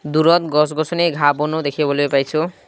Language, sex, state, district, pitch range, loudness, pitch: Assamese, male, Assam, Kamrup Metropolitan, 145-160 Hz, -17 LUFS, 155 Hz